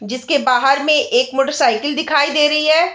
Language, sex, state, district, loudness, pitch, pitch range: Hindi, female, Bihar, Darbhanga, -15 LUFS, 295 Hz, 275-310 Hz